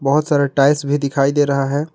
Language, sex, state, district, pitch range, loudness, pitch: Hindi, male, Jharkhand, Garhwa, 140-145 Hz, -16 LUFS, 140 Hz